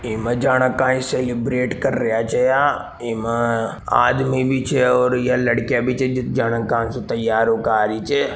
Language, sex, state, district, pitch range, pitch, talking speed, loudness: Marwari, male, Rajasthan, Nagaur, 115-130 Hz, 125 Hz, 185 wpm, -19 LUFS